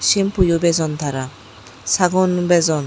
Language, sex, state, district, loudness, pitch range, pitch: Chakma, female, Tripura, Unakoti, -17 LUFS, 135-180 Hz, 165 Hz